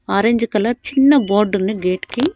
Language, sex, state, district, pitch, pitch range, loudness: Telugu, female, Andhra Pradesh, Annamaya, 225 Hz, 200-270 Hz, -16 LUFS